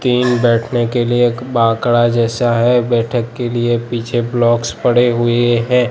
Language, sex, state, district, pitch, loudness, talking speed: Hindi, male, Gujarat, Gandhinagar, 120 Hz, -14 LUFS, 160 wpm